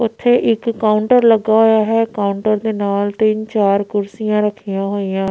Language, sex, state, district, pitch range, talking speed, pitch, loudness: Punjabi, female, Punjab, Pathankot, 200-225 Hz, 160 wpm, 215 Hz, -16 LUFS